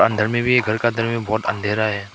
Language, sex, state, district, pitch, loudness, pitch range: Hindi, male, Arunachal Pradesh, Papum Pare, 110 Hz, -20 LUFS, 105-115 Hz